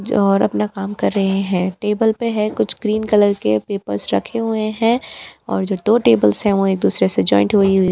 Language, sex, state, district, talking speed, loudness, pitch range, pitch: Hindi, female, Delhi, New Delhi, 225 wpm, -17 LUFS, 180-215 Hz, 200 Hz